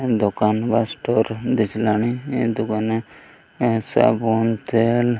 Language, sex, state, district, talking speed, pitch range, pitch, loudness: Odia, male, Odisha, Malkangiri, 115 wpm, 110-120 Hz, 115 Hz, -20 LUFS